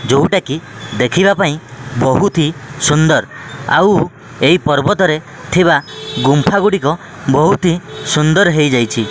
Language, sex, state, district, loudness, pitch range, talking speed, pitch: Odia, male, Odisha, Khordha, -13 LUFS, 135-180 Hz, 100 wpm, 150 Hz